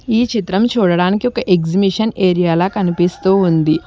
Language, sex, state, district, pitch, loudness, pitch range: Telugu, female, Telangana, Hyderabad, 190 Hz, -15 LUFS, 175-220 Hz